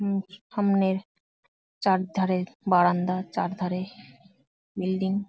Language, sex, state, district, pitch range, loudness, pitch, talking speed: Bengali, female, West Bengal, Jalpaiguri, 185-195 Hz, -26 LUFS, 190 Hz, 80 wpm